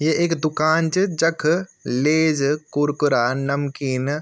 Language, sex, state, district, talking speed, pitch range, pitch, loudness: Garhwali, male, Uttarakhand, Tehri Garhwal, 130 wpm, 140-160 Hz, 150 Hz, -20 LUFS